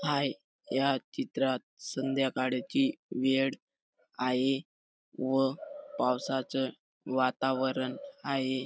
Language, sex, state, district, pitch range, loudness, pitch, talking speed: Marathi, male, Maharashtra, Dhule, 130-140 Hz, -32 LUFS, 135 Hz, 70 wpm